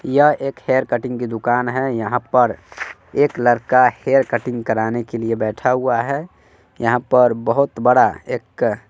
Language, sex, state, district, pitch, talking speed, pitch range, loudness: Hindi, male, Bihar, West Champaran, 125 Hz, 160 wpm, 115-130 Hz, -18 LUFS